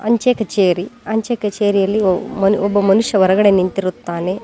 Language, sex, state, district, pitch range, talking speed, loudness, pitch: Kannada, female, Karnataka, Koppal, 185-215 Hz, 135 wpm, -16 LUFS, 200 Hz